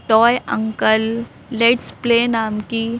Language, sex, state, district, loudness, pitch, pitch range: Hindi, female, Madhya Pradesh, Bhopal, -17 LUFS, 230 Hz, 220-235 Hz